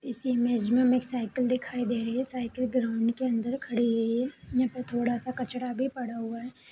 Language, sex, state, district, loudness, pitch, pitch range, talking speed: Hindi, female, Bihar, Begusarai, -29 LUFS, 245 Hz, 235-255 Hz, 225 wpm